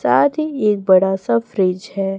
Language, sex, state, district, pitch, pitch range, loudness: Hindi, female, Chhattisgarh, Raipur, 200 Hz, 190-235 Hz, -17 LUFS